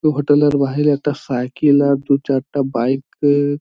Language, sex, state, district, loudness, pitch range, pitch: Bengali, male, West Bengal, Jhargram, -17 LUFS, 135-145 Hz, 140 Hz